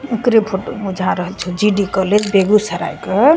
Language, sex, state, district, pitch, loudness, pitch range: Maithili, female, Bihar, Begusarai, 205 Hz, -16 LUFS, 190-215 Hz